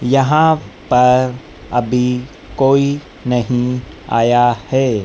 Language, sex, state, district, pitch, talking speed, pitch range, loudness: Hindi, female, Madhya Pradesh, Dhar, 125 Hz, 85 wpm, 120-135 Hz, -15 LUFS